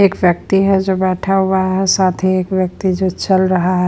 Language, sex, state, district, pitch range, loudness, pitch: Hindi, female, Bihar, Patna, 185-190 Hz, -15 LUFS, 185 Hz